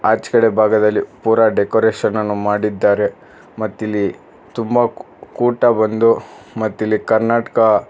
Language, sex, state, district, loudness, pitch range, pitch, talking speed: Kannada, male, Karnataka, Bangalore, -16 LUFS, 105-115 Hz, 110 Hz, 90 wpm